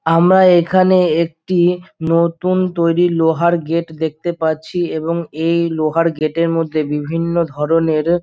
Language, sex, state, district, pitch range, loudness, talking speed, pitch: Bengali, male, West Bengal, Dakshin Dinajpur, 160-175 Hz, -16 LUFS, 125 wpm, 165 Hz